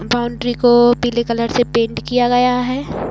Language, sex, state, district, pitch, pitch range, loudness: Hindi, female, Chhattisgarh, Raigarh, 240 Hz, 235-245 Hz, -16 LUFS